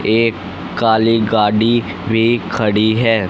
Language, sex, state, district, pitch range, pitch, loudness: Hindi, male, Haryana, Rohtak, 105-115 Hz, 110 Hz, -15 LUFS